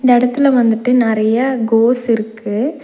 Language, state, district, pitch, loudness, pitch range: Tamil, Tamil Nadu, Nilgiris, 240 Hz, -14 LUFS, 225-250 Hz